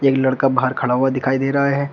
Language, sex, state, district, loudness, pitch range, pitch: Hindi, male, Uttar Pradesh, Shamli, -18 LUFS, 130-140 Hz, 135 Hz